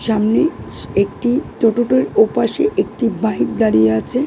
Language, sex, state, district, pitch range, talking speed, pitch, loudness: Bengali, female, West Bengal, Dakshin Dinajpur, 175-245 Hz, 125 wpm, 220 Hz, -16 LUFS